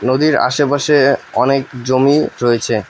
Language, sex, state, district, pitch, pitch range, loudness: Bengali, male, West Bengal, Alipurduar, 135 Hz, 125-145 Hz, -14 LUFS